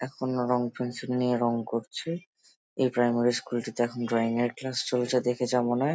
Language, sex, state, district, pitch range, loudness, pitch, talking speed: Bengali, male, West Bengal, Jalpaiguri, 120-125 Hz, -28 LUFS, 125 Hz, 190 wpm